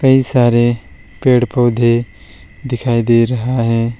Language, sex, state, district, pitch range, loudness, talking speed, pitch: Hindi, male, West Bengal, Alipurduar, 115-125 Hz, -14 LUFS, 120 wpm, 120 Hz